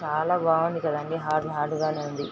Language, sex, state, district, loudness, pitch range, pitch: Telugu, female, Andhra Pradesh, Srikakulam, -26 LUFS, 150-165 Hz, 155 Hz